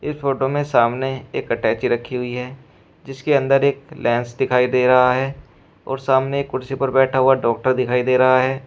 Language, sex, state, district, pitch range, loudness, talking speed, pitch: Hindi, male, Uttar Pradesh, Shamli, 125-135 Hz, -19 LUFS, 195 wpm, 130 Hz